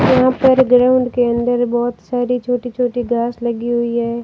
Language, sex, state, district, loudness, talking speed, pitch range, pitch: Hindi, female, Rajasthan, Barmer, -16 LUFS, 185 wpm, 240-250 Hz, 245 Hz